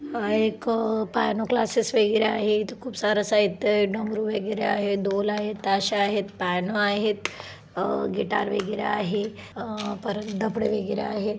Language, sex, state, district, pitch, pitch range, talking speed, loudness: Marathi, female, Maharashtra, Dhule, 210 Hz, 205-220 Hz, 155 wpm, -25 LUFS